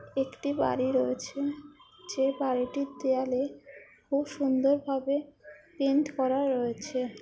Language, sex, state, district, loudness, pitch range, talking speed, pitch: Bengali, female, West Bengal, Jhargram, -30 LUFS, 260-285 Hz, 90 wpm, 270 Hz